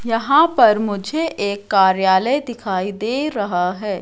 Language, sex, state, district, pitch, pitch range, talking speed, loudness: Hindi, female, Madhya Pradesh, Katni, 210 Hz, 190-250 Hz, 135 wpm, -18 LUFS